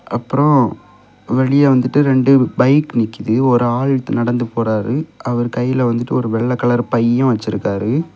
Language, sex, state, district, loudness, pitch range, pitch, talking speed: Tamil, male, Tamil Nadu, Kanyakumari, -15 LUFS, 120-135 Hz, 125 Hz, 130 wpm